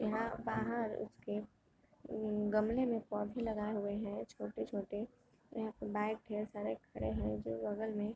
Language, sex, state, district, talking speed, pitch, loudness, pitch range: Hindi, female, Uttar Pradesh, Gorakhpur, 170 wpm, 210 Hz, -40 LUFS, 205-220 Hz